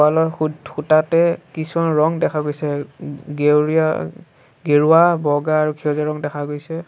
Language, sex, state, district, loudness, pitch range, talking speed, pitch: Assamese, male, Assam, Sonitpur, -18 LUFS, 150-160 Hz, 130 wpm, 150 Hz